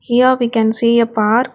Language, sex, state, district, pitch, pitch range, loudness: English, female, Telangana, Hyderabad, 235 Hz, 225-240 Hz, -14 LUFS